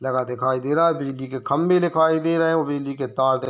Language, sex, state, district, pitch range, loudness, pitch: Hindi, male, Bihar, Muzaffarpur, 130-160 Hz, -21 LUFS, 140 Hz